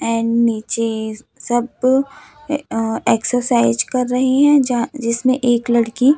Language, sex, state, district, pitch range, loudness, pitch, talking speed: Hindi, female, Chhattisgarh, Raipur, 230-260 Hz, -17 LUFS, 240 Hz, 115 wpm